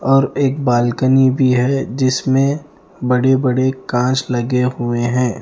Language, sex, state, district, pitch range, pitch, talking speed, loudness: Hindi, male, Punjab, Fazilka, 125-135 Hz, 130 Hz, 135 wpm, -16 LUFS